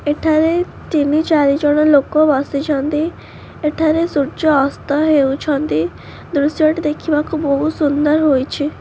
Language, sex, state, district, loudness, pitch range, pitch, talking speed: Odia, female, Odisha, Khordha, -16 LUFS, 285-310 Hz, 300 Hz, 120 wpm